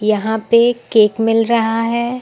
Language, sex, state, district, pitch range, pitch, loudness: Hindi, female, Uttar Pradesh, Lucknow, 220-235 Hz, 225 Hz, -15 LUFS